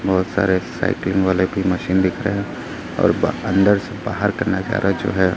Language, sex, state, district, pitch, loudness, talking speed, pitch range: Hindi, male, Chhattisgarh, Raipur, 95 Hz, -19 LUFS, 190 wpm, 95-100 Hz